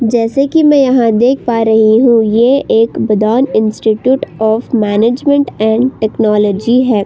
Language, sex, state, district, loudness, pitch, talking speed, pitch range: Hindi, female, Uttar Pradesh, Budaun, -11 LUFS, 230 Hz, 145 wpm, 220-255 Hz